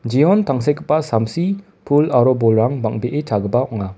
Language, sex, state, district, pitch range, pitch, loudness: Garo, male, Meghalaya, West Garo Hills, 110-150 Hz, 130 Hz, -17 LUFS